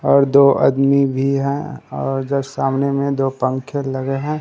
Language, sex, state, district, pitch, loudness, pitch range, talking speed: Hindi, male, Bihar, Katihar, 140 Hz, -17 LUFS, 135-140 Hz, 175 wpm